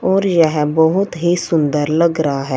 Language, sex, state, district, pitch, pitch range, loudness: Hindi, female, Punjab, Fazilka, 160 Hz, 150-170 Hz, -15 LUFS